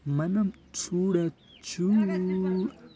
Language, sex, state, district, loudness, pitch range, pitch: Telugu, male, Telangana, Nalgonda, -28 LUFS, 175-195 Hz, 185 Hz